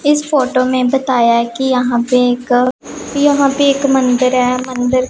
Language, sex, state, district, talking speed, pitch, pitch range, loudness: Hindi, female, Punjab, Pathankot, 175 wpm, 255 Hz, 250-275 Hz, -13 LUFS